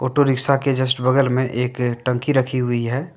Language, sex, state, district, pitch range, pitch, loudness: Hindi, male, Jharkhand, Deoghar, 125-135 Hz, 130 Hz, -19 LUFS